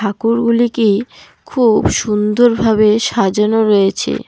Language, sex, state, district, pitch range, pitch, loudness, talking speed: Bengali, female, West Bengal, Alipurduar, 210-235 Hz, 220 Hz, -13 LUFS, 85 wpm